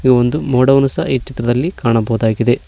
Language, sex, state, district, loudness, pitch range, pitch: Kannada, male, Karnataka, Koppal, -15 LUFS, 115-135 Hz, 125 Hz